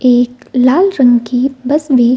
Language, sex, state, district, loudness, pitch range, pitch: Hindi, female, Bihar, Gaya, -12 LUFS, 245-270 Hz, 255 Hz